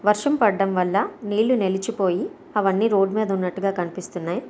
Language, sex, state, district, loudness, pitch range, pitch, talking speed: Telugu, female, Andhra Pradesh, Srikakulam, -22 LUFS, 185-215 Hz, 195 Hz, 145 wpm